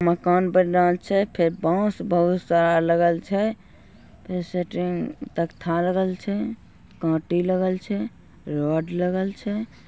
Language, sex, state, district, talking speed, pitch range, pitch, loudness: Hindi, female, Bihar, Begusarai, 130 wpm, 170-195 Hz, 180 Hz, -23 LUFS